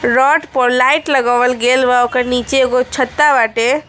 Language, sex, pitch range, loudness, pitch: Bhojpuri, female, 245-270 Hz, -13 LUFS, 250 Hz